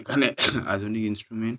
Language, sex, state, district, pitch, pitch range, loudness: Bengali, male, West Bengal, Paschim Medinipur, 110 Hz, 105-115 Hz, -25 LUFS